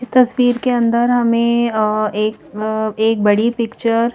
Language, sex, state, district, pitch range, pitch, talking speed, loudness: Hindi, female, Madhya Pradesh, Bhopal, 215-240 Hz, 230 Hz, 145 wpm, -16 LUFS